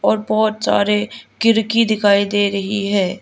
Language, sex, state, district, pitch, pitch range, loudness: Hindi, female, Arunachal Pradesh, Lower Dibang Valley, 210 Hz, 200-220 Hz, -17 LUFS